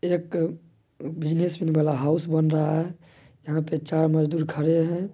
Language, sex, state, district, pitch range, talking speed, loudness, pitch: Maithili, male, Bihar, Madhepura, 155-165 Hz, 150 wpm, -24 LUFS, 160 Hz